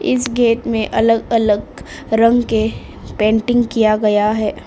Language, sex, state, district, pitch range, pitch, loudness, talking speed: Hindi, female, Arunachal Pradesh, Lower Dibang Valley, 215-235 Hz, 225 Hz, -15 LUFS, 140 wpm